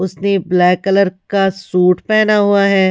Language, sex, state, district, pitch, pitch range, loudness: Hindi, female, Haryana, Rohtak, 195 Hz, 180-200 Hz, -14 LUFS